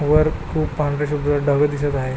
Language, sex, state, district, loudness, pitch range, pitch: Marathi, male, Maharashtra, Pune, -20 LUFS, 145-150 Hz, 145 Hz